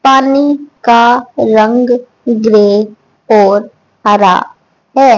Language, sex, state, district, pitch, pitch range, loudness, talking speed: Hindi, female, Haryana, Charkhi Dadri, 235 Hz, 210-265 Hz, -10 LUFS, 80 wpm